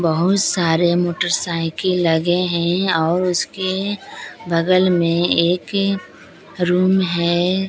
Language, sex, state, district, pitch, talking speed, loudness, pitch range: Hindi, female, Bihar, Katihar, 175 Hz, 95 wpm, -18 LUFS, 170-185 Hz